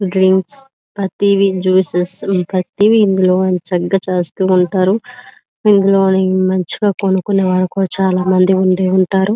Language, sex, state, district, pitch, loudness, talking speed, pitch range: Telugu, female, Andhra Pradesh, Visakhapatnam, 190 Hz, -14 LUFS, 115 wpm, 185-195 Hz